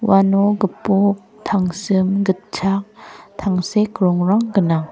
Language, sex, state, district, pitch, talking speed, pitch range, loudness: Garo, female, Meghalaya, West Garo Hills, 195 Hz, 85 wpm, 190-205 Hz, -18 LUFS